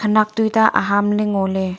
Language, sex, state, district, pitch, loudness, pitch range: Wancho, female, Arunachal Pradesh, Longding, 210 Hz, -17 LUFS, 195-215 Hz